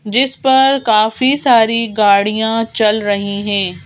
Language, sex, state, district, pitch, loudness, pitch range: Hindi, female, Madhya Pradesh, Bhopal, 220 Hz, -13 LUFS, 205-250 Hz